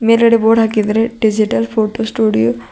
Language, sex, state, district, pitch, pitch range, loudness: Kannada, female, Karnataka, Bidar, 220 Hz, 215-230 Hz, -14 LUFS